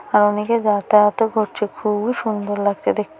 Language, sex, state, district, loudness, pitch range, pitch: Bengali, female, West Bengal, Paschim Medinipur, -19 LUFS, 205-220 Hz, 210 Hz